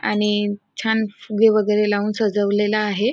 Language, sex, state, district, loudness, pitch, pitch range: Marathi, female, Maharashtra, Nagpur, -20 LUFS, 210 Hz, 205-215 Hz